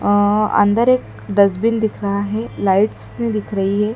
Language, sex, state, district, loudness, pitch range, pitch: Hindi, female, Madhya Pradesh, Dhar, -17 LUFS, 200-220 Hz, 205 Hz